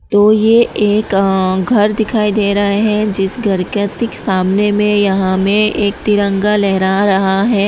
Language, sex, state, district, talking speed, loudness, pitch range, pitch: Hindi, female, Tripura, West Tripura, 165 wpm, -13 LUFS, 195-210 Hz, 205 Hz